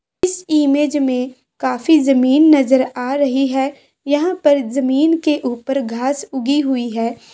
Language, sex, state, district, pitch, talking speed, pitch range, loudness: Hindi, female, Bihar, Bhagalpur, 275 Hz, 145 wpm, 260-295 Hz, -16 LUFS